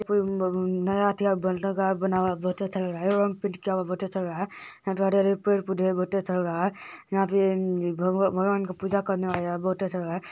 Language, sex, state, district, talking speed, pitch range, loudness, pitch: Hindi, male, Bihar, Araria, 95 wpm, 185-195 Hz, -26 LUFS, 190 Hz